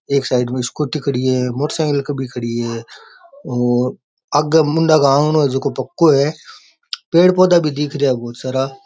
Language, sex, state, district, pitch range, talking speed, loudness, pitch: Rajasthani, male, Rajasthan, Nagaur, 130-155 Hz, 175 wpm, -16 LUFS, 140 Hz